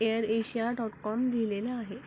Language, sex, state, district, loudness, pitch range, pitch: Marathi, female, Maharashtra, Pune, -31 LUFS, 220-235 Hz, 225 Hz